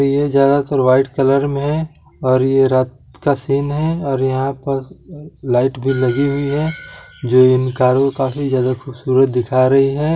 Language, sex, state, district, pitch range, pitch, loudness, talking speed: Hindi, male, Bihar, Gaya, 130-140 Hz, 135 Hz, -16 LUFS, 170 wpm